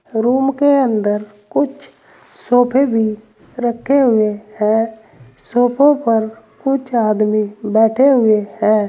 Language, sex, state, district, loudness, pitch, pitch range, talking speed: Hindi, male, Uttar Pradesh, Saharanpur, -15 LUFS, 225 Hz, 215-260 Hz, 110 wpm